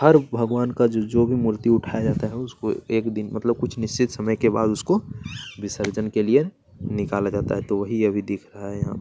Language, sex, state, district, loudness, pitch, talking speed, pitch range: Hindi, male, Chhattisgarh, Kabirdham, -23 LUFS, 110 Hz, 225 wpm, 105-120 Hz